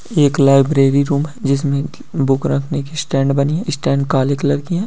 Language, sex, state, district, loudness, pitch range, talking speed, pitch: Hindi, male, Jharkhand, Jamtara, -16 LUFS, 140-150 Hz, 195 wpm, 140 Hz